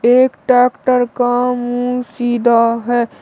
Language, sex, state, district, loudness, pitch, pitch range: Hindi, male, Uttar Pradesh, Shamli, -15 LUFS, 245 Hz, 240-250 Hz